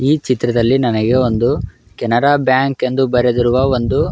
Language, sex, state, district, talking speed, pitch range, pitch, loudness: Kannada, male, Karnataka, Raichur, 130 wpm, 120-135 Hz, 125 Hz, -15 LUFS